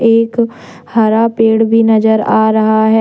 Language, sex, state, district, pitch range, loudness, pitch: Hindi, female, Jharkhand, Deoghar, 220-230 Hz, -11 LUFS, 225 Hz